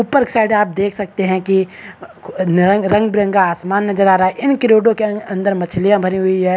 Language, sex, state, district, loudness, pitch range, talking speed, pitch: Hindi, male, Bihar, Kishanganj, -15 LUFS, 190-210 Hz, 200 wpm, 200 Hz